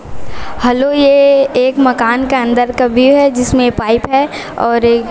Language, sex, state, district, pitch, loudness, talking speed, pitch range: Hindi, female, Chhattisgarh, Raipur, 250 Hz, -11 LUFS, 155 wpm, 240-275 Hz